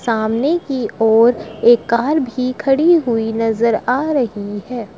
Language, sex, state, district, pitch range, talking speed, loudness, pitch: Hindi, male, Uttar Pradesh, Shamli, 225-270 Hz, 145 wpm, -16 LUFS, 235 Hz